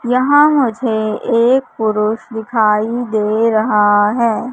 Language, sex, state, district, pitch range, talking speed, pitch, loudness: Hindi, female, Madhya Pradesh, Katni, 215-245 Hz, 105 wpm, 225 Hz, -14 LUFS